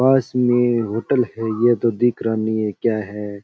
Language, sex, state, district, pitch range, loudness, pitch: Rajasthani, male, Rajasthan, Churu, 110-120 Hz, -19 LUFS, 115 Hz